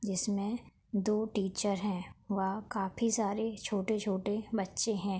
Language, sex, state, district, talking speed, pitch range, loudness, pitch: Hindi, female, Uttar Pradesh, Budaun, 115 wpm, 195-215 Hz, -34 LUFS, 205 Hz